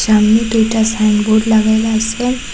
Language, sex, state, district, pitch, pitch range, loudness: Bengali, female, Assam, Hailakandi, 220 Hz, 215-225 Hz, -13 LUFS